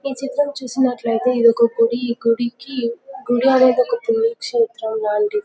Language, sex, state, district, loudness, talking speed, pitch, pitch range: Telugu, female, Telangana, Karimnagar, -18 LUFS, 130 wpm, 250 Hz, 230-275 Hz